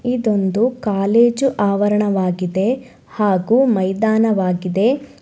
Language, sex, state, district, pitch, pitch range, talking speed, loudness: Kannada, female, Karnataka, Shimoga, 210 Hz, 195-240 Hz, 60 wpm, -17 LUFS